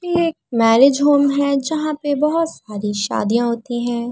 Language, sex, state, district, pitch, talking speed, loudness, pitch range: Hindi, female, Uttar Pradesh, Muzaffarnagar, 280 Hz, 175 wpm, -17 LUFS, 235-300 Hz